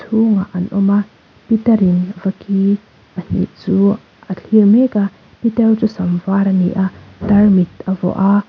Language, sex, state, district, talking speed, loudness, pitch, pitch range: Mizo, female, Mizoram, Aizawl, 160 wpm, -15 LUFS, 195 Hz, 190-210 Hz